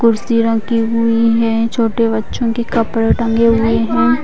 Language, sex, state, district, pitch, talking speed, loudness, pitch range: Hindi, female, Bihar, Vaishali, 230 Hz, 170 wpm, -15 LUFS, 225-230 Hz